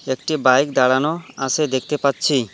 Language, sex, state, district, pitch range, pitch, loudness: Bengali, male, West Bengal, Cooch Behar, 130-150 Hz, 135 Hz, -18 LUFS